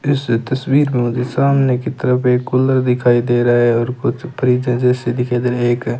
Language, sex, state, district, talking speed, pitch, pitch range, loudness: Hindi, male, Rajasthan, Bikaner, 230 wpm, 125 Hz, 120-130 Hz, -16 LUFS